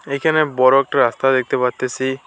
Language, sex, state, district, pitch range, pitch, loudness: Bengali, male, West Bengal, Alipurduar, 130-140 Hz, 130 Hz, -17 LUFS